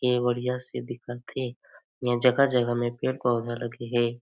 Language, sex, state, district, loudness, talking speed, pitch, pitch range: Chhattisgarhi, male, Chhattisgarh, Jashpur, -27 LUFS, 200 wpm, 120 Hz, 120-125 Hz